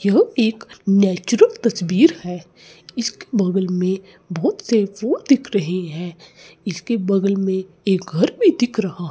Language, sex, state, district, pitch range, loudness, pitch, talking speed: Hindi, male, Chandigarh, Chandigarh, 180-230 Hz, -19 LUFS, 195 Hz, 150 wpm